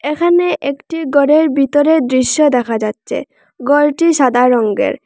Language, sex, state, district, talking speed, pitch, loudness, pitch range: Bengali, female, Assam, Hailakandi, 120 wpm, 285 Hz, -13 LUFS, 255-310 Hz